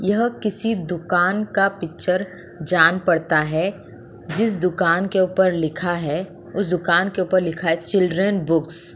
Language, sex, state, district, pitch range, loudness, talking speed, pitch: Hindi, female, Uttar Pradesh, Budaun, 165-190 Hz, -20 LUFS, 155 wpm, 180 Hz